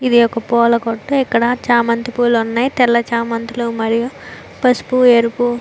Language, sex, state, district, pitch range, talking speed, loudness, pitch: Telugu, female, Andhra Pradesh, Visakhapatnam, 230-245 Hz, 140 wpm, -15 LUFS, 235 Hz